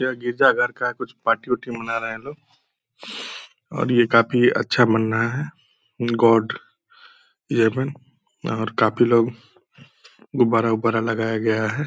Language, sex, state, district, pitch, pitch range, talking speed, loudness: Hindi, male, Bihar, Purnia, 120 Hz, 115-140 Hz, 130 wpm, -21 LUFS